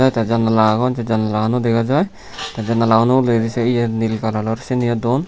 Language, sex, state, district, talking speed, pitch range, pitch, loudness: Chakma, male, Tripura, Unakoti, 215 wpm, 110-120 Hz, 115 Hz, -17 LUFS